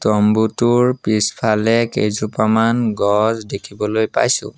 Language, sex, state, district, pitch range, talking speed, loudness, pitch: Assamese, male, Assam, Sonitpur, 105-115 Hz, 80 wpm, -17 LUFS, 110 Hz